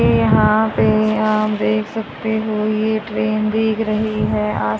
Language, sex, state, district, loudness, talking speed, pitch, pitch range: Hindi, female, Haryana, Jhajjar, -17 LUFS, 135 wpm, 215 Hz, 210-220 Hz